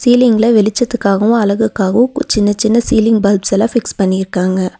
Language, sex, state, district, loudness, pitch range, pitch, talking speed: Tamil, female, Tamil Nadu, Nilgiris, -13 LUFS, 200-235 Hz, 220 Hz, 125 wpm